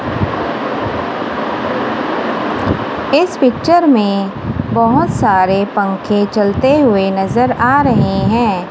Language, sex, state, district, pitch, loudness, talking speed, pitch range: Hindi, female, Punjab, Kapurthala, 215 Hz, -14 LUFS, 85 wpm, 195-260 Hz